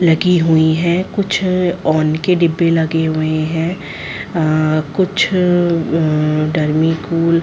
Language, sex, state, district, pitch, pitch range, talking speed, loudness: Hindi, female, Chhattisgarh, Sarguja, 165 Hz, 155-180 Hz, 130 wpm, -15 LUFS